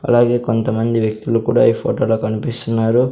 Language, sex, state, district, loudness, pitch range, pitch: Telugu, male, Andhra Pradesh, Sri Satya Sai, -17 LUFS, 110-120 Hz, 115 Hz